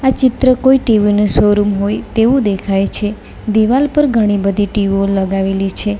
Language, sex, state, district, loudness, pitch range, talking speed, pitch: Gujarati, female, Gujarat, Valsad, -13 LUFS, 200-245 Hz, 170 wpm, 210 Hz